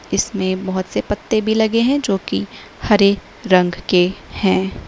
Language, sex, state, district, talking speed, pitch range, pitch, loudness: Hindi, female, Uttar Pradesh, Lalitpur, 160 wpm, 185-220 Hz, 195 Hz, -18 LUFS